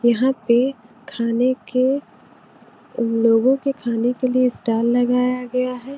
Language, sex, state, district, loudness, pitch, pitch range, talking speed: Hindi, female, Uttar Pradesh, Varanasi, -19 LUFS, 250 Hz, 235-255 Hz, 130 wpm